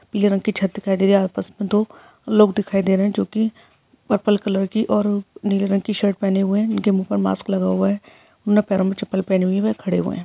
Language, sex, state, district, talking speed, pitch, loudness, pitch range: Hindi, female, Maharashtra, Aurangabad, 275 wpm, 200 Hz, -20 LUFS, 195-210 Hz